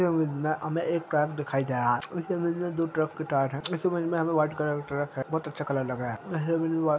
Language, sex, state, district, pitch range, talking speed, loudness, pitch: Hindi, male, Chhattisgarh, Rajnandgaon, 140-165 Hz, 320 wpm, -29 LUFS, 155 Hz